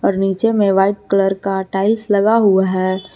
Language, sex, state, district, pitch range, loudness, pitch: Hindi, female, Jharkhand, Palamu, 190-205 Hz, -16 LUFS, 195 Hz